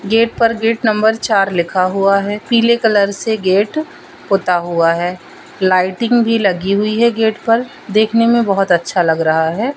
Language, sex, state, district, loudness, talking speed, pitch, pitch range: Hindi, female, Madhya Pradesh, Katni, -14 LUFS, 180 wpm, 210 Hz, 185-230 Hz